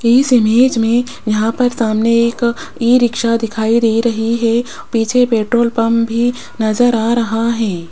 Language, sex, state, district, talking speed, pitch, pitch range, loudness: Hindi, female, Rajasthan, Jaipur, 150 wpm, 230 Hz, 225-240 Hz, -14 LUFS